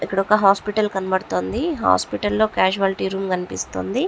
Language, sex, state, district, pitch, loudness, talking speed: Telugu, female, Andhra Pradesh, Chittoor, 190 Hz, -20 LUFS, 130 wpm